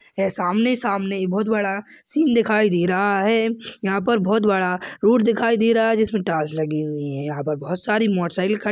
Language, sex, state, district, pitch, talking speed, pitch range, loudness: Hindi, male, Chhattisgarh, Balrampur, 205 Hz, 215 wpm, 180-225 Hz, -20 LUFS